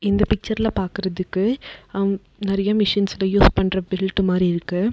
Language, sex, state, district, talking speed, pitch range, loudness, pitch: Tamil, female, Tamil Nadu, Nilgiris, 135 wpm, 190-210 Hz, -21 LUFS, 195 Hz